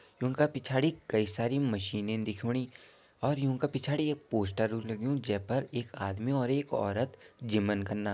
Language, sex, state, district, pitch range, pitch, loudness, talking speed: Garhwali, male, Uttarakhand, Tehri Garhwal, 110-135 Hz, 120 Hz, -32 LUFS, 145 wpm